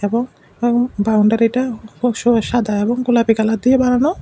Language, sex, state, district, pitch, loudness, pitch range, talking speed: Bengali, male, Tripura, West Tripura, 235 Hz, -16 LUFS, 220-245 Hz, 140 wpm